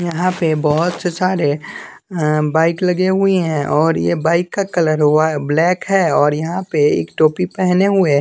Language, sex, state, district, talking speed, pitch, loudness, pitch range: Hindi, male, Bihar, West Champaran, 185 wpm, 170 Hz, -16 LUFS, 155-185 Hz